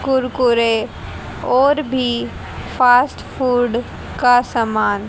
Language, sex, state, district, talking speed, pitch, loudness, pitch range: Hindi, female, Haryana, Jhajjar, 85 wpm, 245 Hz, -16 LUFS, 235-255 Hz